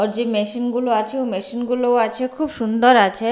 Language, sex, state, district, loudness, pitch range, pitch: Bengali, female, Bihar, Katihar, -19 LUFS, 220-250 Hz, 240 Hz